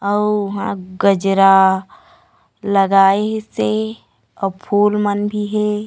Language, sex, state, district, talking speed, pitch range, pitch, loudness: Chhattisgarhi, female, Chhattisgarh, Raigarh, 90 wpm, 190-210 Hz, 200 Hz, -16 LUFS